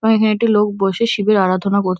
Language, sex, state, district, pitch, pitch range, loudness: Bengali, female, West Bengal, Kolkata, 210 Hz, 195-220 Hz, -16 LUFS